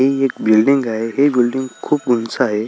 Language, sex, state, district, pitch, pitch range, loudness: Marathi, male, Maharashtra, Solapur, 125 Hz, 115-135 Hz, -16 LUFS